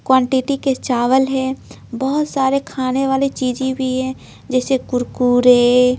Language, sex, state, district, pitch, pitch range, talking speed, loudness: Hindi, female, Bihar, Patna, 260 Hz, 250-265 Hz, 130 wpm, -17 LUFS